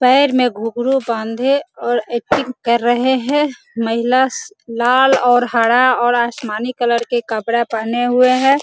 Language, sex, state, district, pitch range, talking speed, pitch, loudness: Hindi, female, Bihar, Sitamarhi, 235-260 Hz, 145 wpm, 245 Hz, -16 LUFS